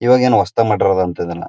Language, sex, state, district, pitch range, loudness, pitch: Kannada, male, Karnataka, Mysore, 90-115 Hz, -15 LUFS, 100 Hz